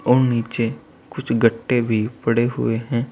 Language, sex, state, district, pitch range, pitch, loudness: Hindi, male, Uttar Pradesh, Saharanpur, 115-125 Hz, 115 Hz, -20 LUFS